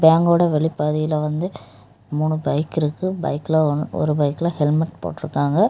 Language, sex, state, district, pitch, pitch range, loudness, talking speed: Tamil, female, Tamil Nadu, Kanyakumari, 155 Hz, 150-165 Hz, -20 LUFS, 125 wpm